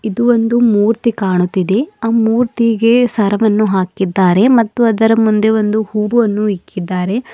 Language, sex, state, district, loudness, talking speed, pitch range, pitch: Kannada, female, Karnataka, Bidar, -13 LUFS, 115 wpm, 200-230 Hz, 220 Hz